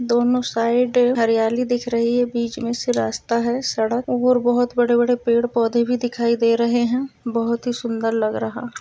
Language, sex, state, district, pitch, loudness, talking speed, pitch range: Hindi, female, Uttar Pradesh, Jalaun, 240 Hz, -20 LUFS, 195 wpm, 235-245 Hz